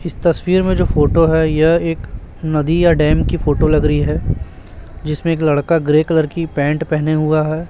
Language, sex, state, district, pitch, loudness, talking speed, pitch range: Hindi, male, Chhattisgarh, Raipur, 155 Hz, -15 LUFS, 205 wpm, 150-165 Hz